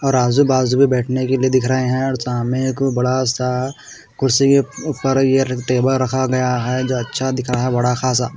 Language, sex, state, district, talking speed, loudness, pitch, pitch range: Hindi, male, Haryana, Jhajjar, 210 wpm, -17 LUFS, 130 Hz, 125-135 Hz